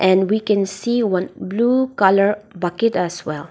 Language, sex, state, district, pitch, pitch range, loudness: English, female, Nagaland, Dimapur, 195 Hz, 180-220 Hz, -19 LUFS